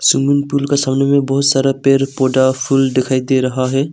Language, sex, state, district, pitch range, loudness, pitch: Hindi, male, Arunachal Pradesh, Longding, 130-140 Hz, -14 LUFS, 135 Hz